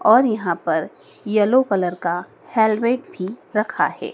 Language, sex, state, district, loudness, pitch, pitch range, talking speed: Hindi, female, Madhya Pradesh, Dhar, -20 LUFS, 210 Hz, 180-230 Hz, 145 wpm